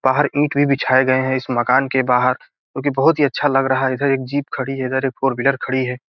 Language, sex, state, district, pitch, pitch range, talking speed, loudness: Hindi, male, Bihar, Gopalganj, 130 Hz, 130-140 Hz, 285 wpm, -18 LUFS